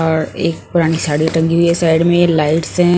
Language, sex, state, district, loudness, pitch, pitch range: Hindi, female, Punjab, Pathankot, -14 LUFS, 165 Hz, 160-170 Hz